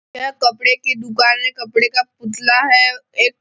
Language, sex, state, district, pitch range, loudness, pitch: Hindi, male, Maharashtra, Nagpur, 240-255 Hz, -14 LUFS, 250 Hz